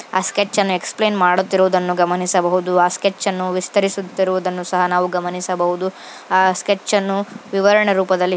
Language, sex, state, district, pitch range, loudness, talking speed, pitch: Kannada, female, Karnataka, Dharwad, 180-200 Hz, -18 LUFS, 130 wpm, 185 Hz